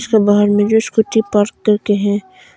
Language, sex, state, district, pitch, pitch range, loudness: Hindi, female, Arunachal Pradesh, Longding, 210 Hz, 205-220 Hz, -14 LUFS